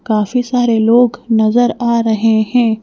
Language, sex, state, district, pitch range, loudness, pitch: Hindi, female, Madhya Pradesh, Bhopal, 220-245 Hz, -13 LUFS, 230 Hz